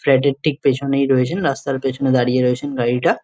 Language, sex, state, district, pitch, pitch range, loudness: Bengali, male, West Bengal, Jalpaiguri, 135 Hz, 125-140 Hz, -18 LUFS